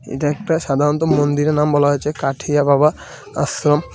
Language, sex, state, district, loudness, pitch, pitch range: Bengali, male, Tripura, West Tripura, -17 LUFS, 145 Hz, 145-150 Hz